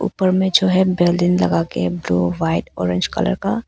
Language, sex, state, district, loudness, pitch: Hindi, female, Arunachal Pradesh, Papum Pare, -18 LUFS, 175 Hz